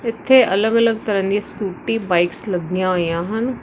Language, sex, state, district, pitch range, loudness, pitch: Punjabi, female, Karnataka, Bangalore, 180-225 Hz, -18 LUFS, 200 Hz